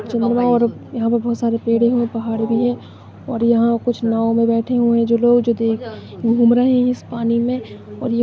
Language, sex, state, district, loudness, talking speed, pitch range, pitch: Hindi, female, Maharashtra, Chandrapur, -17 LUFS, 210 wpm, 230-240 Hz, 235 Hz